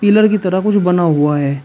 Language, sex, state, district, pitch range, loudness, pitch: Hindi, male, Uttar Pradesh, Shamli, 150-205 Hz, -13 LUFS, 185 Hz